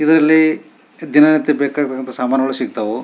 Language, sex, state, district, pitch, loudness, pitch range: Kannada, male, Karnataka, Shimoga, 140 Hz, -15 LUFS, 125-155 Hz